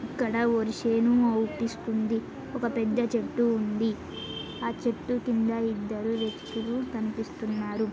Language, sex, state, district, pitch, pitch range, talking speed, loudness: Telugu, female, Telangana, Karimnagar, 225 Hz, 220-235 Hz, 105 wpm, -29 LUFS